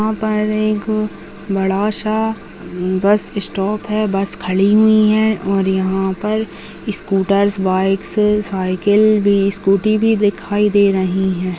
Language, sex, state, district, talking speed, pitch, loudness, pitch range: Hindi, female, Uttarakhand, Uttarkashi, 125 wpm, 200 Hz, -16 LUFS, 195-215 Hz